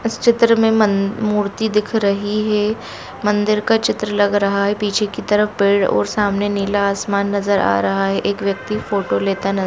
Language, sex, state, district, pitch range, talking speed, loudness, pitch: Hindi, female, Jharkhand, Jamtara, 200-215 Hz, 190 wpm, -17 LUFS, 205 Hz